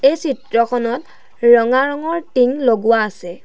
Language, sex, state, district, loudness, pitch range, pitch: Assamese, female, Assam, Sonitpur, -16 LUFS, 235-275 Hz, 250 Hz